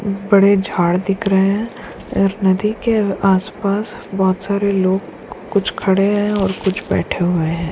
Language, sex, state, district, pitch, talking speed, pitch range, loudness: Hindi, female, Bihar, Kishanganj, 195 Hz, 150 wpm, 190-200 Hz, -17 LUFS